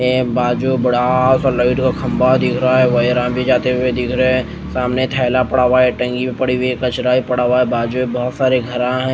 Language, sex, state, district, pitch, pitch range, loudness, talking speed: Hindi, male, Odisha, Nuapada, 125 Hz, 125-130 Hz, -16 LUFS, 230 wpm